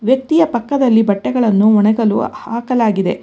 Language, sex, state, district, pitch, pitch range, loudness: Kannada, female, Karnataka, Bangalore, 225 Hz, 210-255 Hz, -14 LUFS